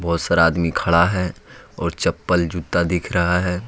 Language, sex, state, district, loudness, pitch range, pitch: Hindi, male, Jharkhand, Ranchi, -19 LUFS, 85-90 Hz, 85 Hz